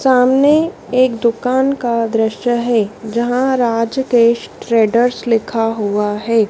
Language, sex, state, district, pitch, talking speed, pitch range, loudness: Hindi, female, Madhya Pradesh, Dhar, 235 Hz, 110 wpm, 225-250 Hz, -15 LUFS